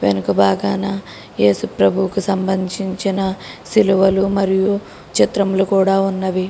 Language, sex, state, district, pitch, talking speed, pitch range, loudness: Telugu, female, Telangana, Karimnagar, 190 Hz, 90 wpm, 185-195 Hz, -17 LUFS